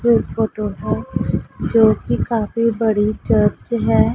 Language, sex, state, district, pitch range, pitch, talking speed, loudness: Hindi, female, Punjab, Pathankot, 215-230 Hz, 225 Hz, 115 wpm, -18 LUFS